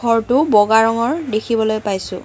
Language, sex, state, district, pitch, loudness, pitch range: Assamese, female, Assam, Kamrup Metropolitan, 225 Hz, -16 LUFS, 215-235 Hz